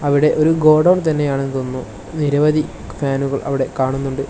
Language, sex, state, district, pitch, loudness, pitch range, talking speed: Malayalam, male, Kerala, Kasaragod, 140 Hz, -17 LUFS, 135-155 Hz, 140 wpm